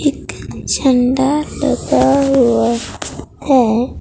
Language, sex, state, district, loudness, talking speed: Hindi, female, Bihar, Katihar, -14 LUFS, 75 wpm